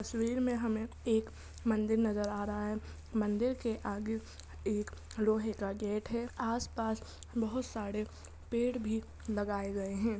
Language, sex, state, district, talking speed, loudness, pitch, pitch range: Hindi, female, Jharkhand, Jamtara, 145 wpm, -36 LUFS, 220 Hz, 210-230 Hz